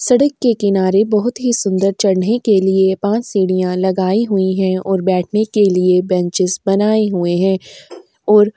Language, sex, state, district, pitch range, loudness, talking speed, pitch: Hindi, female, Uttar Pradesh, Jyotiba Phule Nagar, 185-215 Hz, -15 LUFS, 155 wpm, 195 Hz